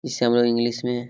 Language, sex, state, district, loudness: Hindi, male, Jharkhand, Jamtara, -21 LUFS